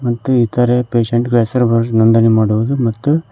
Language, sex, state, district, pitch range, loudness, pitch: Kannada, male, Karnataka, Koppal, 115-125 Hz, -14 LUFS, 120 Hz